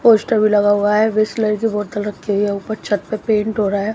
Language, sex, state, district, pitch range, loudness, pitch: Hindi, female, Haryana, Jhajjar, 205-215 Hz, -17 LUFS, 210 Hz